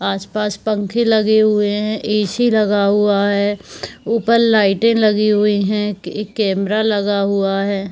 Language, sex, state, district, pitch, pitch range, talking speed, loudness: Hindi, female, Jharkhand, Jamtara, 210 Hz, 200-215 Hz, 160 wpm, -16 LUFS